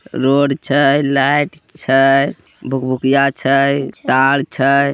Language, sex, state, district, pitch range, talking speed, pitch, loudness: Hindi, male, Bihar, Begusarai, 135-140 Hz, 95 wpm, 140 Hz, -15 LUFS